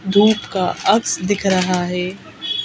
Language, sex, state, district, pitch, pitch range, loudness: Hindi, female, Madhya Pradesh, Bhopal, 190 Hz, 180-205 Hz, -18 LUFS